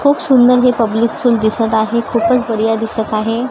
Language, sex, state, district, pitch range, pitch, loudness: Marathi, female, Maharashtra, Gondia, 225-250 Hz, 230 Hz, -14 LUFS